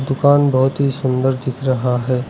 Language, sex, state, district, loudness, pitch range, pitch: Hindi, male, Arunachal Pradesh, Lower Dibang Valley, -17 LUFS, 130-135 Hz, 130 Hz